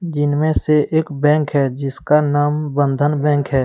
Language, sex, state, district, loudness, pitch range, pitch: Hindi, male, Jharkhand, Deoghar, -17 LUFS, 145-150 Hz, 145 Hz